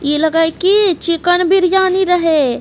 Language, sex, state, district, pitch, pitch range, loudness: Hindi, female, Bihar, Jamui, 355 Hz, 320-375 Hz, -13 LUFS